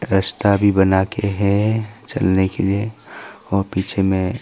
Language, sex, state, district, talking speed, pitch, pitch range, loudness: Hindi, male, Arunachal Pradesh, Longding, 150 wpm, 100 Hz, 95-105 Hz, -19 LUFS